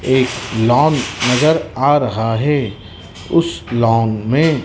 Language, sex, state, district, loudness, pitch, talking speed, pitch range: Hindi, male, Madhya Pradesh, Dhar, -15 LUFS, 120 Hz, 115 wpm, 110-145 Hz